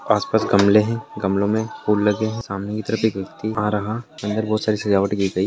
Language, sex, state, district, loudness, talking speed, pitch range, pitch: Hindi, male, Maharashtra, Chandrapur, -21 LUFS, 240 wpm, 100-110 Hz, 105 Hz